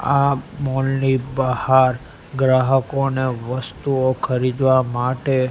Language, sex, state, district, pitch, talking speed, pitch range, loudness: Gujarati, male, Gujarat, Gandhinagar, 130 Hz, 85 wpm, 130-135 Hz, -19 LUFS